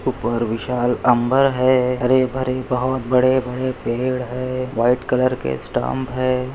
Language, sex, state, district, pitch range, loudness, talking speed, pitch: Hindi, male, Maharashtra, Pune, 125-130 Hz, -19 LUFS, 135 wpm, 125 Hz